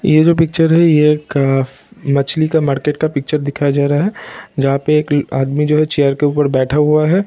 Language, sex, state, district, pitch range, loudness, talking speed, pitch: Hindi, male, Bihar, Vaishali, 140-155 Hz, -14 LUFS, 225 wpm, 150 Hz